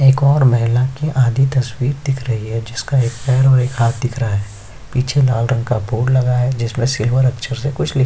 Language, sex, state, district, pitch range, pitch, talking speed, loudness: Hindi, male, Chhattisgarh, Sukma, 115-135 Hz, 125 Hz, 225 wpm, -16 LUFS